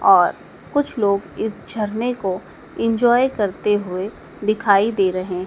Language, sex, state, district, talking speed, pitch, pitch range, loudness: Hindi, female, Madhya Pradesh, Dhar, 130 wpm, 210 Hz, 195-230 Hz, -20 LUFS